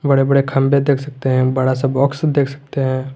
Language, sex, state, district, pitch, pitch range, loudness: Hindi, male, Jharkhand, Garhwa, 135 Hz, 130-140 Hz, -16 LUFS